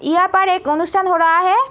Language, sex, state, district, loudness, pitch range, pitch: Hindi, female, Uttar Pradesh, Etah, -15 LUFS, 330-380 Hz, 360 Hz